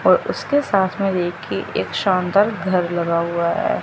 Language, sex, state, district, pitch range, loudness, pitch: Hindi, female, Chandigarh, Chandigarh, 170-195 Hz, -20 LUFS, 185 Hz